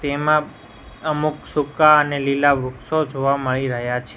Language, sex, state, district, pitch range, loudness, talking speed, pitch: Gujarati, male, Gujarat, Gandhinagar, 130-150 Hz, -19 LUFS, 145 wpm, 140 Hz